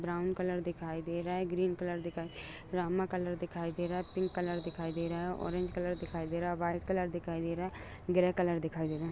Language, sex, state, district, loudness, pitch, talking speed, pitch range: Hindi, male, Bihar, Begusarai, -36 LUFS, 175 Hz, 275 wpm, 170-180 Hz